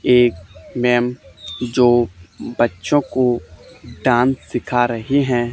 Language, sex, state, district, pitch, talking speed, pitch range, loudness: Hindi, male, Haryana, Charkhi Dadri, 120 Hz, 100 wpm, 110-125 Hz, -18 LUFS